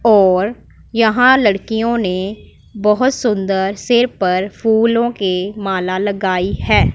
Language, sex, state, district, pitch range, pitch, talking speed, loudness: Hindi, female, Punjab, Pathankot, 190-230 Hz, 210 Hz, 110 wpm, -15 LUFS